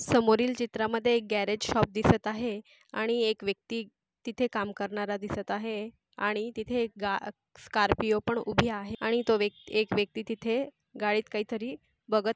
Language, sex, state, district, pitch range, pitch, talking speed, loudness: Marathi, female, Maharashtra, Aurangabad, 210-230 Hz, 220 Hz, 160 wpm, -30 LUFS